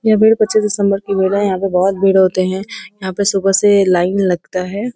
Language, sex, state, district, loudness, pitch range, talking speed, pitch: Hindi, female, Uttar Pradesh, Varanasi, -14 LUFS, 190-205 Hz, 220 wpm, 195 Hz